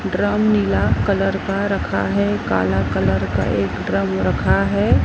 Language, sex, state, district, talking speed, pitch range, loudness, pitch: Hindi, female, Maharashtra, Mumbai Suburban, 155 wpm, 95-105 Hz, -19 LUFS, 100 Hz